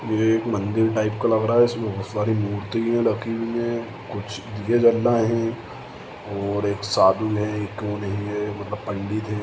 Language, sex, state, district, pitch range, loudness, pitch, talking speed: Hindi, male, Bihar, Samastipur, 105-115 Hz, -23 LUFS, 110 Hz, 190 wpm